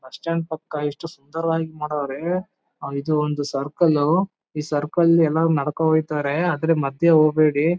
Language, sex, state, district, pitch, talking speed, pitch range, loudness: Kannada, male, Karnataka, Chamarajanagar, 155 Hz, 130 wpm, 145-165 Hz, -21 LUFS